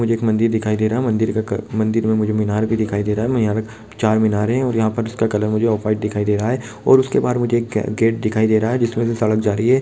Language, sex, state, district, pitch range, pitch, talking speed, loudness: Hindi, male, Bihar, Jamui, 110-115 Hz, 110 Hz, 305 wpm, -18 LUFS